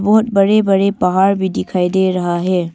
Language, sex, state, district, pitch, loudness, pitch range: Hindi, female, Arunachal Pradesh, Longding, 190 Hz, -14 LUFS, 180-200 Hz